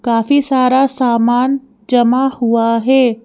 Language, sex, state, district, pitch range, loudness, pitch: Hindi, female, Madhya Pradesh, Bhopal, 230-265 Hz, -13 LUFS, 250 Hz